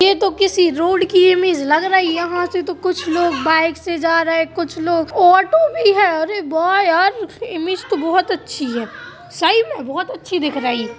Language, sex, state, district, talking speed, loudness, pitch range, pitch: Hindi, female, Bihar, Madhepura, 195 wpm, -16 LUFS, 320-370 Hz, 345 Hz